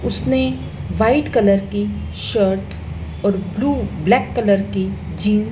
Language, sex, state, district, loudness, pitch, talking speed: Hindi, female, Madhya Pradesh, Dhar, -19 LUFS, 190 Hz, 120 wpm